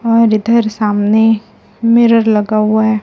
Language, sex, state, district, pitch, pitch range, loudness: Hindi, female, Chhattisgarh, Raipur, 220 Hz, 215-230 Hz, -12 LUFS